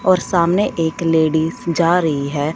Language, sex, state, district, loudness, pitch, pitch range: Hindi, female, Punjab, Fazilka, -17 LUFS, 165 Hz, 160-175 Hz